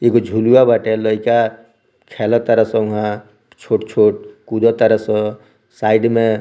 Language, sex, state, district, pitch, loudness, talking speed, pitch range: Bhojpuri, male, Bihar, Muzaffarpur, 115 Hz, -15 LUFS, 120 wpm, 110-120 Hz